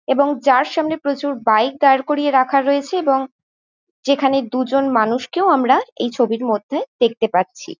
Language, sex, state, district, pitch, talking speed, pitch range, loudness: Bengali, female, West Bengal, Jhargram, 270 Hz, 145 wpm, 240-280 Hz, -17 LUFS